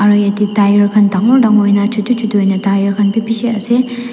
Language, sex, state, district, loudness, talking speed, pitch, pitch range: Nagamese, female, Nagaland, Dimapur, -12 LUFS, 220 wpm, 210 Hz, 205-225 Hz